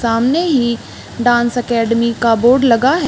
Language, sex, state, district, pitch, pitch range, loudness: Hindi, female, Chhattisgarh, Balrampur, 240 Hz, 235-255 Hz, -14 LUFS